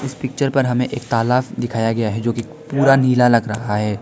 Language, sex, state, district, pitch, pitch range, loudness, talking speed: Hindi, male, Arunachal Pradesh, Lower Dibang Valley, 125 Hz, 115-135 Hz, -18 LUFS, 225 wpm